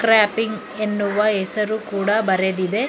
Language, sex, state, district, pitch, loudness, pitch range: Kannada, female, Karnataka, Bangalore, 210 Hz, -20 LUFS, 200-215 Hz